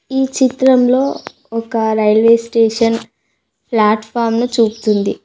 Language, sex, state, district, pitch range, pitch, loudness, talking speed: Telugu, female, Telangana, Mahabubabad, 220-255 Hz, 230 Hz, -14 LUFS, 105 wpm